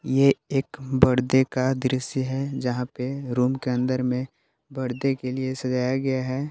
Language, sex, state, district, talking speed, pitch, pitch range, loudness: Hindi, male, Jharkhand, Palamu, 155 wpm, 130 Hz, 130-135 Hz, -25 LUFS